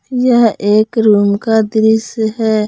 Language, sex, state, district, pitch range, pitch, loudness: Hindi, female, Jharkhand, Palamu, 215-225 Hz, 220 Hz, -12 LUFS